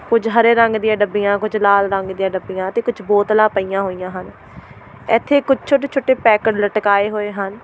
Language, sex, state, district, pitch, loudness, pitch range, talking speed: Punjabi, female, Delhi, New Delhi, 210 Hz, -16 LUFS, 195-230 Hz, 190 wpm